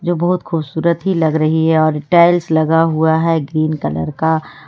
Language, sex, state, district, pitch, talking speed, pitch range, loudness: Hindi, female, Jharkhand, Ranchi, 160 Hz, 190 wpm, 155-170 Hz, -15 LUFS